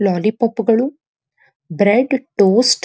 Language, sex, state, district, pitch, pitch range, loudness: Kannada, female, Karnataka, Dharwad, 225 Hz, 200-250 Hz, -16 LUFS